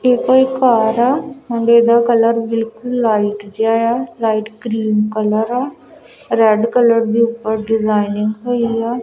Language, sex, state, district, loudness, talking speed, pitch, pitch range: Punjabi, female, Punjab, Kapurthala, -15 LUFS, 140 wpm, 230 Hz, 220-245 Hz